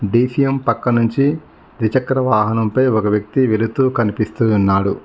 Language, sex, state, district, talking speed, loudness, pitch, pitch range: Telugu, male, Telangana, Mahabubabad, 105 wpm, -16 LUFS, 115 Hz, 110-130 Hz